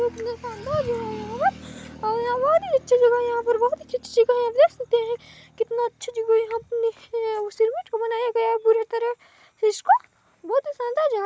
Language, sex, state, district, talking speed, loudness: Hindi, female, Chhattisgarh, Balrampur, 245 wpm, -23 LUFS